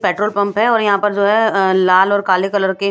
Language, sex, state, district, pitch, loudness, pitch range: Hindi, female, Haryana, Rohtak, 200 Hz, -14 LUFS, 190-210 Hz